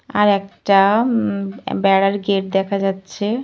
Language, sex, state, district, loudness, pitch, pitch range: Bengali, female, Jharkhand, Jamtara, -18 LUFS, 200 Hz, 195-210 Hz